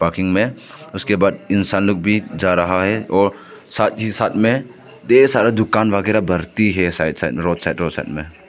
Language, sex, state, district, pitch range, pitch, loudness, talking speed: Hindi, male, Arunachal Pradesh, Papum Pare, 90-110 Hz, 100 Hz, -17 LUFS, 190 wpm